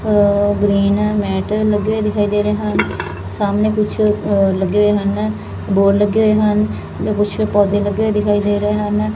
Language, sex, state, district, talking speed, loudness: Punjabi, female, Punjab, Fazilka, 170 wpm, -16 LUFS